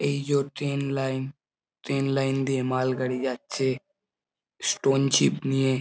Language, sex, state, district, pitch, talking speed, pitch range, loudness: Bengali, male, West Bengal, Jhargram, 135 Hz, 125 wpm, 130-140 Hz, -26 LUFS